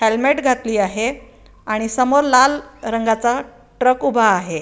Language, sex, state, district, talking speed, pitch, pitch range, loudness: Marathi, female, Maharashtra, Aurangabad, 130 wpm, 240 Hz, 220-255 Hz, -17 LUFS